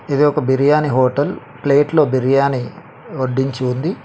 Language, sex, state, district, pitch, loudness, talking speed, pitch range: Telugu, male, Telangana, Mahabubabad, 140 Hz, -16 LUFS, 120 wpm, 130-150 Hz